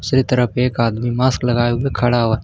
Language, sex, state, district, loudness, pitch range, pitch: Hindi, male, Uttar Pradesh, Lucknow, -17 LUFS, 120-125 Hz, 120 Hz